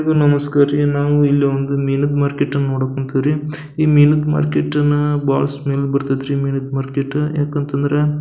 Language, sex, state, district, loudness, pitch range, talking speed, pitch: Kannada, male, Karnataka, Belgaum, -17 LUFS, 140-150 Hz, 140 wpm, 145 Hz